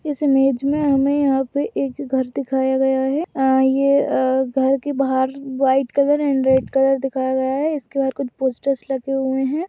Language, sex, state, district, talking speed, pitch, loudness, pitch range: Hindi, female, Maharashtra, Solapur, 190 wpm, 270 Hz, -19 LUFS, 265-280 Hz